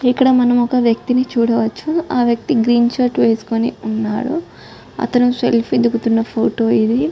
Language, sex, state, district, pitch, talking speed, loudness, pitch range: Telugu, female, Andhra Pradesh, Chittoor, 240 Hz, 135 wpm, -16 LUFS, 230-250 Hz